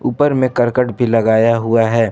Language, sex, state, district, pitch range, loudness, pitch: Hindi, male, Jharkhand, Ranchi, 115-125 Hz, -14 LUFS, 115 Hz